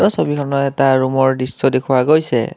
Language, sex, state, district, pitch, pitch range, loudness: Assamese, male, Assam, Kamrup Metropolitan, 135 Hz, 130-140 Hz, -15 LUFS